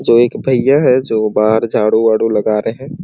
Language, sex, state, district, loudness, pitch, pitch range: Hindi, male, Chhattisgarh, Sarguja, -13 LUFS, 115 Hz, 110-130 Hz